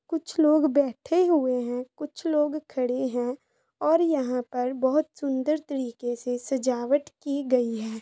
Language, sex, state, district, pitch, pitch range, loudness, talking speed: Hindi, female, Bihar, Saran, 275 Hz, 250-305 Hz, -26 LUFS, 155 wpm